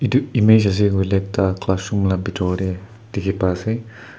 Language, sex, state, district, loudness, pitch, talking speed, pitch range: Nagamese, male, Nagaland, Kohima, -19 LUFS, 100 Hz, 160 wpm, 95-110 Hz